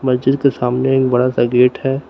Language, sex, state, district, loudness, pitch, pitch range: Hindi, male, Uttar Pradesh, Lucknow, -15 LUFS, 130 Hz, 125-135 Hz